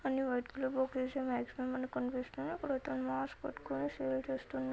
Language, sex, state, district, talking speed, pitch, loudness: Telugu, female, Telangana, Nalgonda, 165 wpm, 255 Hz, -38 LUFS